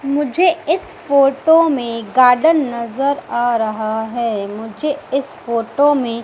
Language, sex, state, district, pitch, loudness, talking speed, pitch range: Hindi, female, Madhya Pradesh, Umaria, 265 Hz, -16 LUFS, 125 wpm, 230-295 Hz